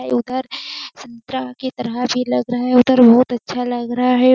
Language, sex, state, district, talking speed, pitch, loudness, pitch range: Hindi, female, Bihar, Kishanganj, 205 wpm, 250 Hz, -17 LUFS, 240-255 Hz